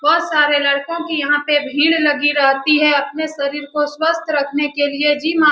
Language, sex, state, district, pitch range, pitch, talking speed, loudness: Hindi, female, Bihar, Saran, 285-310 Hz, 295 Hz, 215 wpm, -16 LUFS